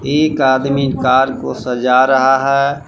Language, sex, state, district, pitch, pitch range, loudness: Hindi, male, Jharkhand, Palamu, 135 Hz, 130-140 Hz, -14 LUFS